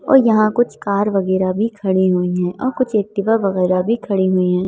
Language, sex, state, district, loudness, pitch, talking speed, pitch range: Hindi, female, Madhya Pradesh, Bhopal, -17 LUFS, 200 Hz, 215 wpm, 185-225 Hz